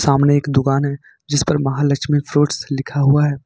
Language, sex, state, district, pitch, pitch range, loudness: Hindi, male, Jharkhand, Ranchi, 145 Hz, 140-145 Hz, -17 LUFS